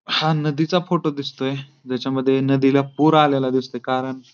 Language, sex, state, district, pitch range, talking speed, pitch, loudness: Marathi, male, Maharashtra, Pune, 130-155 Hz, 150 wpm, 135 Hz, -20 LUFS